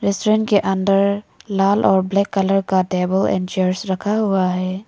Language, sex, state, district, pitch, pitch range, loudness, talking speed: Hindi, female, Arunachal Pradesh, Lower Dibang Valley, 195 Hz, 185-200 Hz, -18 LUFS, 170 wpm